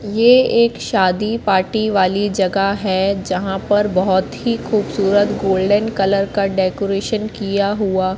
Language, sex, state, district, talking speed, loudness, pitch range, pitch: Hindi, female, Madhya Pradesh, Katni, 130 wpm, -17 LUFS, 190-215 Hz, 200 Hz